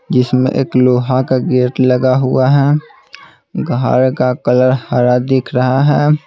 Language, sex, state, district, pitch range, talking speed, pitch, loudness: Hindi, male, Bihar, Patna, 125-135 Hz, 145 wpm, 130 Hz, -13 LUFS